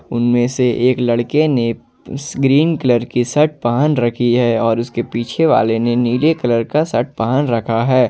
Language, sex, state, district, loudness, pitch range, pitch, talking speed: Hindi, male, Jharkhand, Ranchi, -16 LUFS, 120-140 Hz, 120 Hz, 180 wpm